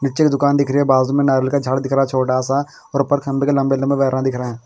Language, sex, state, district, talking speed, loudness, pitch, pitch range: Hindi, male, Bihar, Patna, 270 wpm, -17 LUFS, 135 Hz, 130-140 Hz